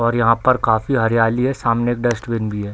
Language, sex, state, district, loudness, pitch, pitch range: Hindi, male, Bihar, Darbhanga, -18 LUFS, 115 Hz, 115-120 Hz